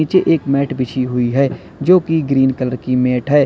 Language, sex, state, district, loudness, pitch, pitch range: Hindi, male, Uttar Pradesh, Lalitpur, -16 LUFS, 135 Hz, 125-155 Hz